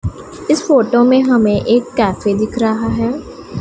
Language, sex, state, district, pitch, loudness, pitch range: Hindi, female, Punjab, Pathankot, 235 Hz, -14 LUFS, 220-255 Hz